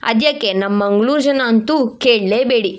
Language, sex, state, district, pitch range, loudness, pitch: Kannada, female, Karnataka, Shimoga, 205-260 Hz, -15 LUFS, 230 Hz